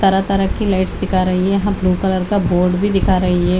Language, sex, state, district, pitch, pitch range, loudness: Hindi, female, Haryana, Charkhi Dadri, 190 Hz, 185-195 Hz, -16 LUFS